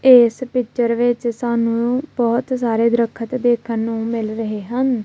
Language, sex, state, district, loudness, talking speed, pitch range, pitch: Punjabi, female, Punjab, Kapurthala, -19 LUFS, 140 wpm, 230-250 Hz, 235 Hz